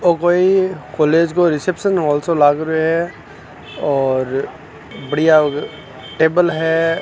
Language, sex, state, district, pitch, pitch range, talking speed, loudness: Hindi, male, Rajasthan, Nagaur, 160 Hz, 150-175 Hz, 130 wpm, -16 LUFS